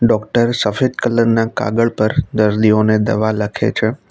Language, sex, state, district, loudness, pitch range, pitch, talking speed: Gujarati, male, Gujarat, Navsari, -16 LUFS, 110-120 Hz, 110 Hz, 145 wpm